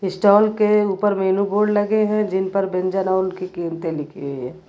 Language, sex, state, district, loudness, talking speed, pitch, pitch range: Hindi, female, Uttar Pradesh, Lucknow, -19 LUFS, 205 wpm, 190 Hz, 185-205 Hz